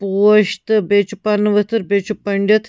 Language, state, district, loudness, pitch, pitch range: Kashmiri, Punjab, Kapurthala, -16 LUFS, 210 Hz, 200-215 Hz